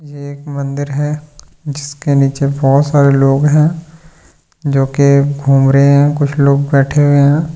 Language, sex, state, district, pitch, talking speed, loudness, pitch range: Hindi, male, Delhi, New Delhi, 140 Hz, 160 wpm, -12 LUFS, 140-150 Hz